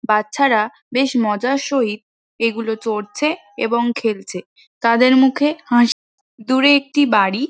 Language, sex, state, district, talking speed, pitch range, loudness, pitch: Bengali, female, West Bengal, Jhargram, 130 wpm, 220-275 Hz, -17 LUFS, 240 Hz